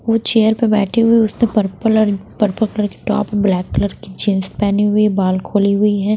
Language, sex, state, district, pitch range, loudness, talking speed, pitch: Hindi, female, Bihar, Patna, 200-220 Hz, -16 LUFS, 235 wpm, 210 Hz